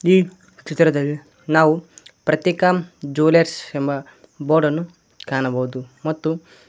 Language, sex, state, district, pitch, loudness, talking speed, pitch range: Kannada, male, Karnataka, Koppal, 155 Hz, -20 LUFS, 90 wpm, 145-170 Hz